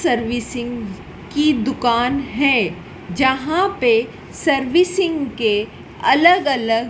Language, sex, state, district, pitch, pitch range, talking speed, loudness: Hindi, female, Madhya Pradesh, Dhar, 265 Hz, 235-315 Hz, 85 wpm, -18 LUFS